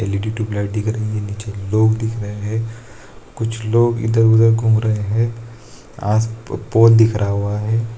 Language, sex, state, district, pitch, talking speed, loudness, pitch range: Hindi, male, Bihar, Saharsa, 110 Hz, 175 wpm, -18 LUFS, 105-115 Hz